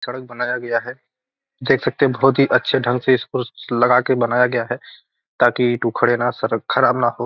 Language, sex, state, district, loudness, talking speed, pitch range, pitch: Hindi, male, Bihar, Gopalganj, -18 LUFS, 205 wpm, 120-130 Hz, 125 Hz